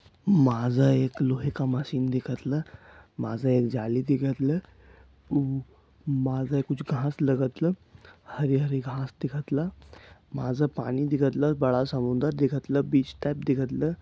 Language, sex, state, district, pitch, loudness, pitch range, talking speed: Marathi, male, Maharashtra, Sindhudurg, 135 Hz, -27 LUFS, 130-145 Hz, 120 wpm